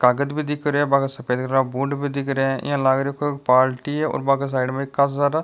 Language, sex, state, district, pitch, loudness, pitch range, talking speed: Rajasthani, male, Rajasthan, Nagaur, 140 Hz, -21 LUFS, 135-145 Hz, 285 wpm